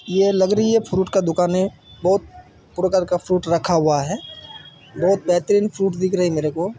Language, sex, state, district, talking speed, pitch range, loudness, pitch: Hindi, male, Chhattisgarh, Bilaspur, 195 wpm, 175-195 Hz, -19 LUFS, 185 Hz